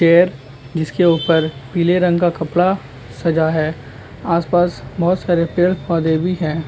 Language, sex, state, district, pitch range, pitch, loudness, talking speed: Hindi, male, Maharashtra, Nagpur, 155-175 Hz, 165 Hz, -17 LUFS, 145 wpm